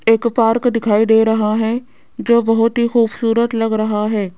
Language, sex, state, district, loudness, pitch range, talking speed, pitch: Hindi, female, Rajasthan, Jaipur, -15 LUFS, 220-235 Hz, 180 wpm, 225 Hz